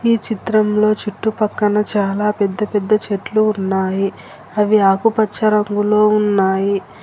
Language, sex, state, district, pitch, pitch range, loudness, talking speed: Telugu, female, Telangana, Hyderabad, 210 Hz, 200-215 Hz, -16 LUFS, 110 wpm